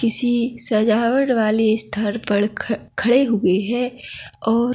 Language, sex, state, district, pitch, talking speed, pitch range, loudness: Hindi, female, Chhattisgarh, Kabirdham, 230 Hz, 125 wpm, 215-245 Hz, -18 LUFS